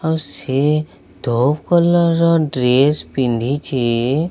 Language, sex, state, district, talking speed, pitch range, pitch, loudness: Odia, male, Odisha, Sambalpur, 95 wpm, 130-160 Hz, 145 Hz, -16 LUFS